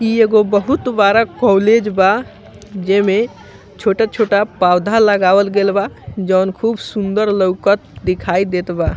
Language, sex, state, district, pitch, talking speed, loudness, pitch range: Bhojpuri, male, Bihar, Muzaffarpur, 200 Hz, 125 wpm, -15 LUFS, 190-220 Hz